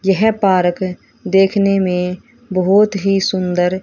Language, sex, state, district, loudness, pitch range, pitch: Hindi, female, Haryana, Rohtak, -15 LUFS, 185-195 Hz, 190 Hz